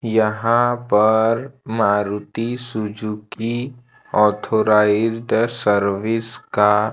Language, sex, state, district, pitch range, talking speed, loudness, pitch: Hindi, male, Madhya Pradesh, Bhopal, 105-115 Hz, 60 wpm, -19 LUFS, 110 Hz